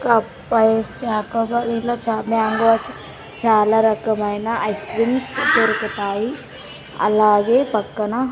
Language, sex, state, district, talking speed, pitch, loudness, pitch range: Telugu, female, Andhra Pradesh, Sri Satya Sai, 110 wpm, 225 Hz, -19 LUFS, 215-230 Hz